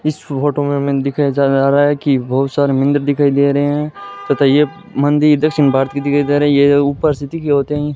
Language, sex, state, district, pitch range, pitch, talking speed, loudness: Hindi, male, Rajasthan, Bikaner, 140-150 Hz, 145 Hz, 240 wpm, -14 LUFS